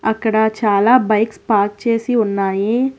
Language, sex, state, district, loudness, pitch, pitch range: Telugu, female, Telangana, Hyderabad, -16 LUFS, 220 Hz, 205-230 Hz